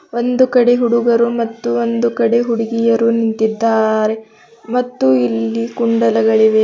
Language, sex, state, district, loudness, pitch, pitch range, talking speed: Kannada, female, Karnataka, Bidar, -15 LUFS, 230 Hz, 220-235 Hz, 100 wpm